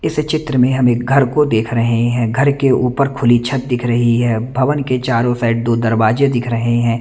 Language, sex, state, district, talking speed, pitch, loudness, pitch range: Hindi, male, Chandigarh, Chandigarh, 230 wpm, 120 Hz, -15 LUFS, 115-135 Hz